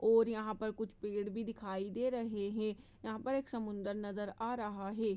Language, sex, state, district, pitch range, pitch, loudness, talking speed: Hindi, female, Chhattisgarh, Bastar, 205-225 Hz, 215 Hz, -39 LUFS, 210 wpm